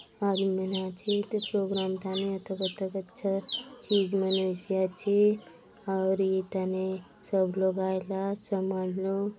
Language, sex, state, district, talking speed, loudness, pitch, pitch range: Halbi, female, Chhattisgarh, Bastar, 145 wpm, -30 LUFS, 190 Hz, 190-200 Hz